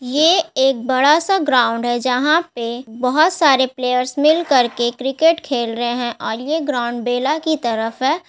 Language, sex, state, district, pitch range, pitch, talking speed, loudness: Hindi, female, Bihar, Gaya, 240-310 Hz, 260 Hz, 160 wpm, -17 LUFS